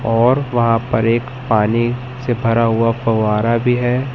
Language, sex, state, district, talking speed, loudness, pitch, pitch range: Hindi, male, Madhya Pradesh, Katni, 160 wpm, -16 LUFS, 115 Hz, 115-125 Hz